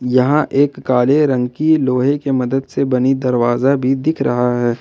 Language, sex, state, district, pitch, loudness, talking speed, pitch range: Hindi, male, Jharkhand, Ranchi, 130 Hz, -15 LUFS, 185 wpm, 125-140 Hz